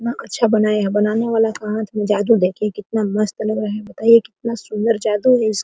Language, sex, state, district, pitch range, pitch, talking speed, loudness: Hindi, female, Jharkhand, Sahebganj, 210-230 Hz, 215 Hz, 255 wpm, -18 LUFS